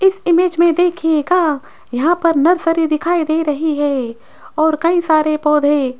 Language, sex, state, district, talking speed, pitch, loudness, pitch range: Hindi, female, Rajasthan, Jaipur, 160 wpm, 320 Hz, -15 LUFS, 300-345 Hz